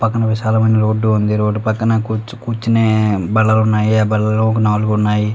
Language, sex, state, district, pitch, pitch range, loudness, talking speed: Telugu, male, Telangana, Karimnagar, 110 Hz, 105-110 Hz, -15 LUFS, 170 wpm